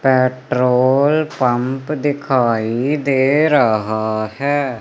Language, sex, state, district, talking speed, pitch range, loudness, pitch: Hindi, male, Madhya Pradesh, Umaria, 75 wpm, 125-145 Hz, -16 LUFS, 130 Hz